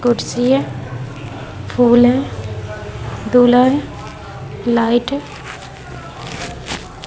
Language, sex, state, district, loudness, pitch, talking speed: Hindi, female, Bihar, Vaishali, -16 LUFS, 230 Hz, 75 wpm